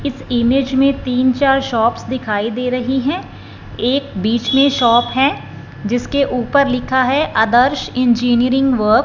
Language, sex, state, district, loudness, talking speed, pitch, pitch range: Hindi, male, Punjab, Fazilka, -15 LUFS, 150 wpm, 255 Hz, 240-270 Hz